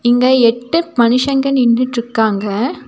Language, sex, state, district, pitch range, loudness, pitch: Tamil, female, Tamil Nadu, Nilgiris, 235-260 Hz, -14 LUFS, 245 Hz